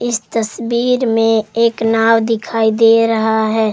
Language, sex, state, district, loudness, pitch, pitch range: Hindi, female, Jharkhand, Garhwa, -14 LUFS, 225 Hz, 220-230 Hz